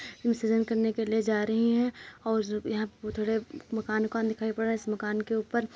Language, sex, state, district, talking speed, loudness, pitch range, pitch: Hindi, male, Uttar Pradesh, Jalaun, 210 wpm, -29 LUFS, 215-225 Hz, 220 Hz